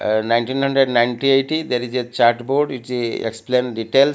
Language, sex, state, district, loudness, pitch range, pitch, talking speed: English, male, Odisha, Malkangiri, -19 LUFS, 120-135 Hz, 125 Hz, 175 wpm